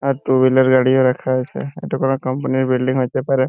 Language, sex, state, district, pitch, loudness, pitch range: Bengali, male, West Bengal, Purulia, 130 Hz, -17 LUFS, 130-135 Hz